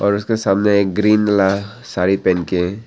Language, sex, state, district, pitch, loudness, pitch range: Hindi, male, Arunachal Pradesh, Papum Pare, 100 Hz, -16 LUFS, 95-105 Hz